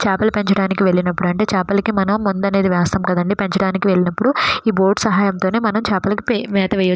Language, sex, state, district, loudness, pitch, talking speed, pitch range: Telugu, female, Andhra Pradesh, Srikakulam, -17 LUFS, 195 Hz, 155 wpm, 190-210 Hz